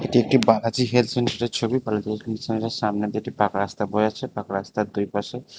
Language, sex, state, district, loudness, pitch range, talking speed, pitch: Bengali, male, Tripura, West Tripura, -24 LUFS, 105-120 Hz, 205 wpm, 110 Hz